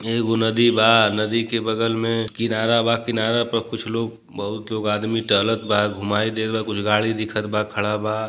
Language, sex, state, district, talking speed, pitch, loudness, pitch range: Bhojpuri, male, Uttar Pradesh, Deoria, 195 wpm, 110 Hz, -21 LUFS, 105-115 Hz